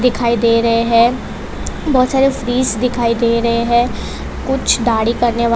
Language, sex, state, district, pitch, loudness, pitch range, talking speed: Hindi, female, Gujarat, Valsad, 235 Hz, -15 LUFS, 230-250 Hz, 160 wpm